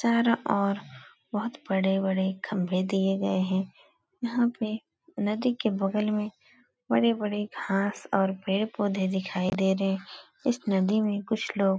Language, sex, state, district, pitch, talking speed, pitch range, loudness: Hindi, female, Uttar Pradesh, Etah, 200 Hz, 160 wpm, 190-220 Hz, -28 LUFS